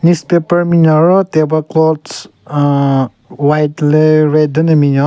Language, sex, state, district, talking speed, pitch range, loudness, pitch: Rengma, male, Nagaland, Kohima, 140 wpm, 145-165 Hz, -12 LUFS, 155 Hz